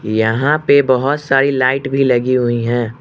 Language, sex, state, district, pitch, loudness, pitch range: Hindi, male, Arunachal Pradesh, Lower Dibang Valley, 130 Hz, -14 LUFS, 120-135 Hz